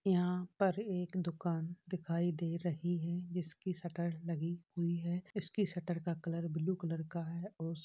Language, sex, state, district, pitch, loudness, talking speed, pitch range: Hindi, female, Uttar Pradesh, Gorakhpur, 175 Hz, -39 LUFS, 175 wpm, 170-180 Hz